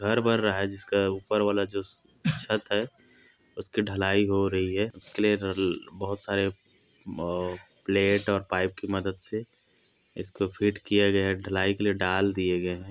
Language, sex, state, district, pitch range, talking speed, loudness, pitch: Hindi, male, Chhattisgarh, Korba, 95-100 Hz, 190 wpm, -27 LUFS, 100 Hz